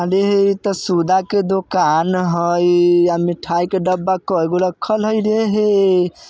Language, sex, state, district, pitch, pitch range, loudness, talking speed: Bajjika, male, Bihar, Vaishali, 185 Hz, 175-200 Hz, -16 LUFS, 135 wpm